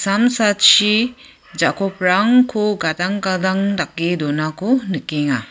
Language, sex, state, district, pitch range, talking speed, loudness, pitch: Garo, female, Meghalaya, West Garo Hills, 170-210 Hz, 65 wpm, -17 LUFS, 195 Hz